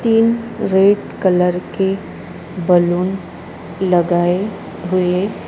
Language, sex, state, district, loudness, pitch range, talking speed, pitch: Hindi, female, Maharashtra, Gondia, -16 LUFS, 180-200 Hz, 75 wpm, 185 Hz